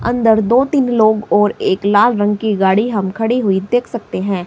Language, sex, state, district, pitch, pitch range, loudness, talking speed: Hindi, female, Himachal Pradesh, Shimla, 215 Hz, 200-235 Hz, -14 LUFS, 215 wpm